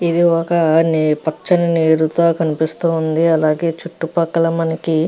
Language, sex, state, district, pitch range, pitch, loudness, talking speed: Telugu, female, Andhra Pradesh, Visakhapatnam, 160-170 Hz, 165 Hz, -16 LUFS, 120 wpm